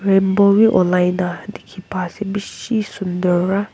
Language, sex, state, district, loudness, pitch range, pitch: Nagamese, female, Nagaland, Kohima, -17 LUFS, 180-200 Hz, 195 Hz